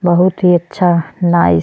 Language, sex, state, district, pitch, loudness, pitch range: Bhojpuri, female, Uttar Pradesh, Deoria, 175 Hz, -13 LUFS, 170-180 Hz